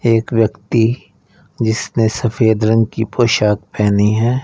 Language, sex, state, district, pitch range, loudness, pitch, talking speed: Hindi, male, Punjab, Fazilka, 105-115 Hz, -15 LUFS, 110 Hz, 120 wpm